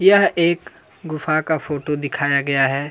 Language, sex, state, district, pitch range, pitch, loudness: Hindi, male, Chhattisgarh, Kabirdham, 145-165 Hz, 150 Hz, -19 LUFS